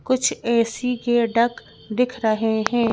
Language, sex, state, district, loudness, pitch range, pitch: Hindi, female, Madhya Pradesh, Bhopal, -21 LUFS, 230-245 Hz, 235 Hz